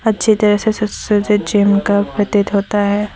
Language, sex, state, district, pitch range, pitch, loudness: Hindi, female, Assam, Sonitpur, 205-210 Hz, 205 Hz, -15 LUFS